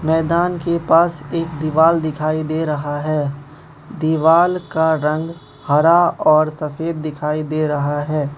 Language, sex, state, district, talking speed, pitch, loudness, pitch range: Hindi, male, Manipur, Imphal West, 135 wpm, 155 Hz, -17 LUFS, 150-165 Hz